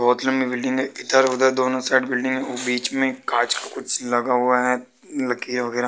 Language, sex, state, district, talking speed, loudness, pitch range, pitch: Hindi, male, Uttar Pradesh, Budaun, 195 wpm, -21 LUFS, 125-130 Hz, 125 Hz